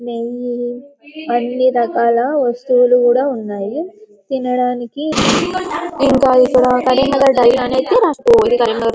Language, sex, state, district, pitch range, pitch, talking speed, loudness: Telugu, female, Telangana, Karimnagar, 240-285 Hz, 255 Hz, 95 wpm, -14 LUFS